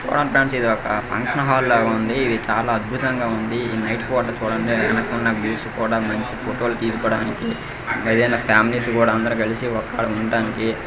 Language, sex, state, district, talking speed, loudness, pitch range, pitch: Telugu, male, Karnataka, Raichur, 165 wpm, -20 LUFS, 110-120 Hz, 115 Hz